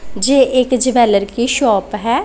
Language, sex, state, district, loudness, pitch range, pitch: Hindi, female, Punjab, Pathankot, -14 LUFS, 210-255 Hz, 240 Hz